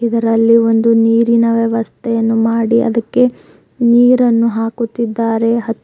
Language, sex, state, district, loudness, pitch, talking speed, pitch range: Kannada, female, Karnataka, Bidar, -13 LUFS, 230 Hz, 80 wpm, 225-235 Hz